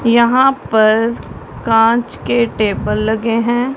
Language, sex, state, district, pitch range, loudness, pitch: Hindi, male, Punjab, Pathankot, 220-240 Hz, -14 LUFS, 230 Hz